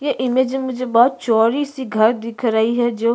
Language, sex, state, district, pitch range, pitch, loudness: Hindi, female, Maharashtra, Aurangabad, 230-260 Hz, 240 Hz, -18 LUFS